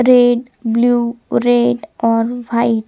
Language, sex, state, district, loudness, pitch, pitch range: Marathi, female, Maharashtra, Sindhudurg, -15 LUFS, 235 Hz, 225-245 Hz